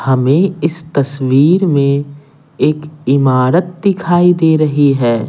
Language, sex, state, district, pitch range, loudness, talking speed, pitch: Hindi, male, Bihar, Patna, 140-165 Hz, -13 LUFS, 115 wpm, 150 Hz